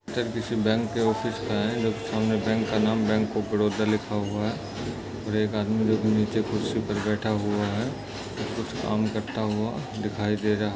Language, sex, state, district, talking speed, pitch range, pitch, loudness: Hindi, male, Chhattisgarh, Rajnandgaon, 195 wpm, 105-110 Hz, 110 Hz, -27 LUFS